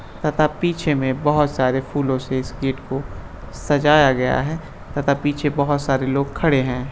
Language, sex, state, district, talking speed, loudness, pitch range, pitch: Hindi, male, Uttar Pradesh, Budaun, 175 wpm, -20 LUFS, 130-150 Hz, 140 Hz